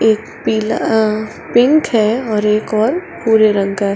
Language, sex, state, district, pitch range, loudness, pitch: Hindi, female, Uttar Pradesh, Hamirpur, 215-225 Hz, -15 LUFS, 220 Hz